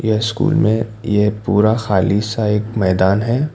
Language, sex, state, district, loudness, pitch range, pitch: Hindi, male, Karnataka, Bangalore, -16 LUFS, 105-115 Hz, 110 Hz